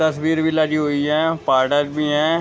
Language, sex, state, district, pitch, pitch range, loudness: Hindi, male, Jharkhand, Sahebganj, 155 Hz, 145-160 Hz, -19 LUFS